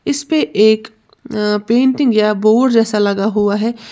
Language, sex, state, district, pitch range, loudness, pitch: Hindi, female, Uttar Pradesh, Lalitpur, 210-245 Hz, -14 LUFS, 220 Hz